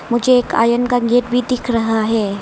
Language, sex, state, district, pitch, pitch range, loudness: Hindi, female, Arunachal Pradesh, Lower Dibang Valley, 240 Hz, 225-245 Hz, -16 LUFS